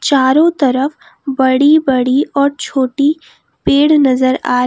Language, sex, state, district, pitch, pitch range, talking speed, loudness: Hindi, female, Jharkhand, Palamu, 275 Hz, 260-295 Hz, 115 wpm, -13 LUFS